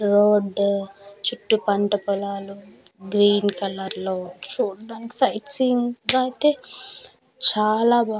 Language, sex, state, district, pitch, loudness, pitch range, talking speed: Telugu, female, Andhra Pradesh, Manyam, 205 Hz, -22 LUFS, 200-230 Hz, 110 wpm